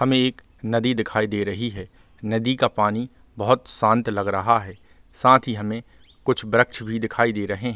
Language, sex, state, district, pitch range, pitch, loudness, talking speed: Hindi, male, Chhattisgarh, Bilaspur, 105-120 Hz, 115 Hz, -22 LUFS, 200 wpm